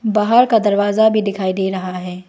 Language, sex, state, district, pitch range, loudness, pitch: Hindi, female, Arunachal Pradesh, Lower Dibang Valley, 185-220 Hz, -16 LUFS, 205 Hz